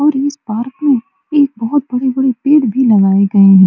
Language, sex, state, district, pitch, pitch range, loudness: Hindi, female, Bihar, Supaul, 260 Hz, 225-285 Hz, -13 LUFS